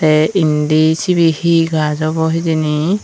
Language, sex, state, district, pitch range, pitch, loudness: Chakma, female, Tripura, Unakoti, 155-165 Hz, 160 Hz, -14 LUFS